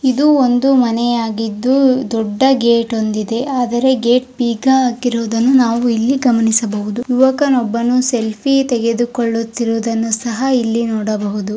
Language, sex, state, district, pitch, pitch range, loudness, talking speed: Kannada, female, Karnataka, Gulbarga, 240 Hz, 225-255 Hz, -15 LUFS, 110 wpm